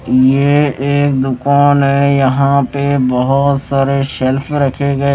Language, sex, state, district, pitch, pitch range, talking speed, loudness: Hindi, male, Chhattisgarh, Raipur, 140 Hz, 135-140 Hz, 130 wpm, -13 LUFS